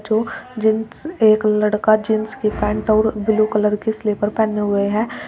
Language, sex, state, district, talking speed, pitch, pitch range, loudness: Hindi, female, Uttar Pradesh, Shamli, 170 wpm, 215 Hz, 210-220 Hz, -18 LUFS